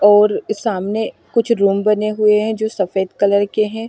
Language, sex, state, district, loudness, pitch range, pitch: Hindi, female, Punjab, Fazilka, -17 LUFS, 200-220 Hz, 210 Hz